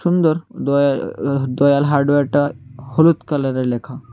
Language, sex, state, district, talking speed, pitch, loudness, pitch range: Bengali, male, Tripura, West Tripura, 85 wpm, 140 Hz, -17 LUFS, 130-145 Hz